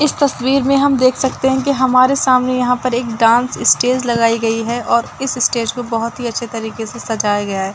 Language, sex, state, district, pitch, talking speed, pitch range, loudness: Hindi, female, Uttar Pradesh, Budaun, 245 Hz, 230 wpm, 230-260 Hz, -15 LUFS